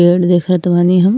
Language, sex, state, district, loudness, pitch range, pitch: Bhojpuri, female, Uttar Pradesh, Ghazipur, -12 LUFS, 175-180 Hz, 180 Hz